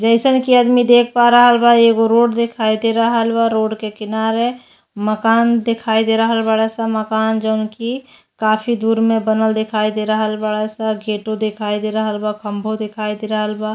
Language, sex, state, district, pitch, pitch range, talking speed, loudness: Bhojpuri, female, Uttar Pradesh, Deoria, 220 Hz, 215-230 Hz, 190 wpm, -16 LUFS